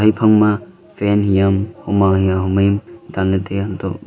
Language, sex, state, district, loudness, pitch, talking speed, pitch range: Wancho, male, Arunachal Pradesh, Longding, -16 LUFS, 100 Hz, 175 wpm, 95-105 Hz